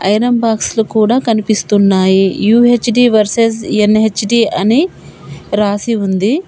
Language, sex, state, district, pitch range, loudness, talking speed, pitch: Telugu, female, Telangana, Komaram Bheem, 205-235 Hz, -12 LUFS, 100 wpm, 220 Hz